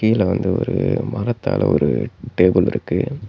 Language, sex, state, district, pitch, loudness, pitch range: Tamil, male, Tamil Nadu, Namakkal, 110 Hz, -19 LUFS, 95-125 Hz